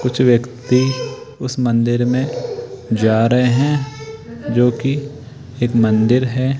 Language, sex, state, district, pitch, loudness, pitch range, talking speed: Hindi, male, Rajasthan, Jaipur, 125 Hz, -17 LUFS, 120-135 Hz, 120 wpm